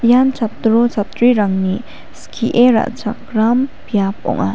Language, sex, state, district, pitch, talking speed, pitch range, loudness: Garo, female, Meghalaya, West Garo Hills, 230 Hz, 90 wpm, 205-245 Hz, -16 LUFS